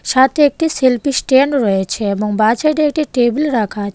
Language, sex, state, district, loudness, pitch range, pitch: Bengali, female, Tripura, West Tripura, -14 LUFS, 215-290 Hz, 260 Hz